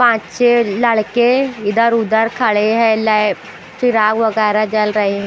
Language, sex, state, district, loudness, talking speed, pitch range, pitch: Hindi, female, Bihar, Patna, -14 LUFS, 135 wpm, 215-235 Hz, 220 Hz